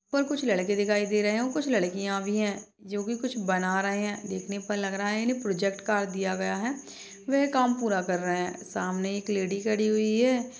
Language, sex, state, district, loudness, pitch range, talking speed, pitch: Hindi, female, Chhattisgarh, Bastar, -28 LUFS, 195-225 Hz, 230 wpm, 205 Hz